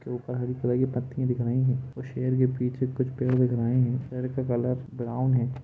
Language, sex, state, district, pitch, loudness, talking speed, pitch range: Hindi, male, Jharkhand, Jamtara, 125 Hz, -27 LUFS, 225 wpm, 125-130 Hz